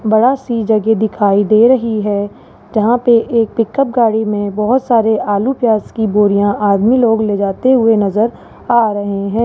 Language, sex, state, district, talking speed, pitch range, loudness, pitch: Hindi, male, Rajasthan, Jaipur, 180 wpm, 205-235 Hz, -13 LUFS, 220 Hz